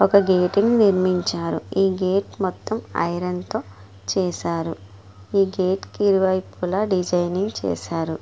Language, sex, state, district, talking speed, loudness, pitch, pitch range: Telugu, female, Andhra Pradesh, Guntur, 115 wpm, -22 LUFS, 185 Hz, 170-195 Hz